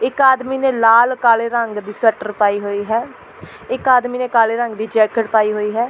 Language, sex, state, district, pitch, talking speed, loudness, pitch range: Punjabi, female, Delhi, New Delhi, 230 Hz, 215 wpm, -16 LUFS, 215-250 Hz